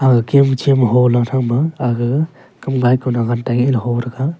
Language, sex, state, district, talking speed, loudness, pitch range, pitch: Wancho, male, Arunachal Pradesh, Longding, 190 wpm, -16 LUFS, 120-135 Hz, 125 Hz